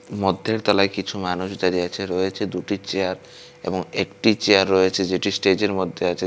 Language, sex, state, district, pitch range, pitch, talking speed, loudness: Bengali, male, Tripura, West Tripura, 90-100 Hz, 95 Hz, 160 wpm, -21 LUFS